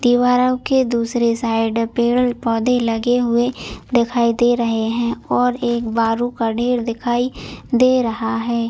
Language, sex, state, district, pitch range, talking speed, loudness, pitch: Hindi, female, Chhattisgarh, Bilaspur, 230-245 Hz, 140 wpm, -18 LUFS, 235 Hz